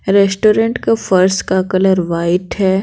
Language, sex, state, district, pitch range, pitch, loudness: Hindi, female, Bihar, Patna, 185-210 Hz, 190 Hz, -14 LUFS